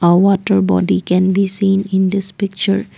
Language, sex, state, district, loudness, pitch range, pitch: English, female, Assam, Kamrup Metropolitan, -15 LUFS, 175-195 Hz, 190 Hz